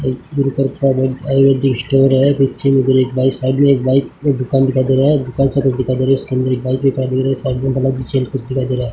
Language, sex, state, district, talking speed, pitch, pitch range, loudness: Hindi, male, Rajasthan, Bikaner, 230 wpm, 135 Hz, 130-135 Hz, -15 LUFS